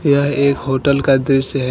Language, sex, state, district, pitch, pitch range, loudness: Hindi, male, Jharkhand, Deoghar, 140 Hz, 135-140 Hz, -15 LUFS